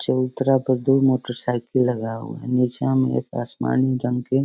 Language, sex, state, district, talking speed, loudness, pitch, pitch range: Hindi, female, Bihar, Sitamarhi, 175 wpm, -22 LUFS, 125 Hz, 120-130 Hz